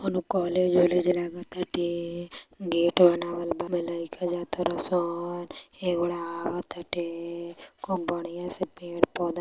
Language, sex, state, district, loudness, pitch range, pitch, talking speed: Hindi, male, Uttar Pradesh, Varanasi, -28 LUFS, 170-180 Hz, 175 Hz, 115 wpm